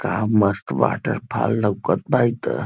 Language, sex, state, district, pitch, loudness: Bhojpuri, male, Uttar Pradesh, Varanasi, 105 Hz, -21 LUFS